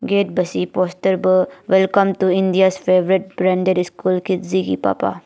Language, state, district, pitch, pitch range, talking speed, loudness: Nyishi, Arunachal Pradesh, Papum Pare, 185 Hz, 180-190 Hz, 135 wpm, -17 LUFS